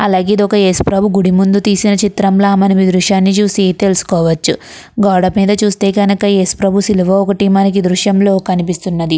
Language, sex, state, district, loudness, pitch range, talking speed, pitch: Telugu, female, Andhra Pradesh, Krishna, -12 LUFS, 185-200 Hz, 150 wpm, 195 Hz